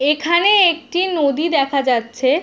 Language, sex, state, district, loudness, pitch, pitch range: Bengali, female, West Bengal, Jhargram, -16 LUFS, 305 Hz, 275-345 Hz